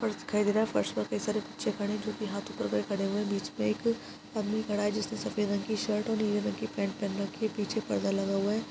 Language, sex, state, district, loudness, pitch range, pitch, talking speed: Hindi, female, Chhattisgarh, Kabirdham, -32 LUFS, 195-215 Hz, 205 Hz, 295 wpm